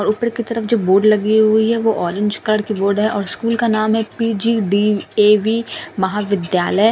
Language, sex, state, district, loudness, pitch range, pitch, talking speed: Hindi, female, Delhi, New Delhi, -16 LUFS, 205-225 Hz, 215 Hz, 190 wpm